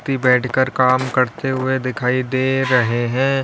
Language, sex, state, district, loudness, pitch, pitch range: Hindi, male, Uttar Pradesh, Lalitpur, -18 LUFS, 130 Hz, 125-130 Hz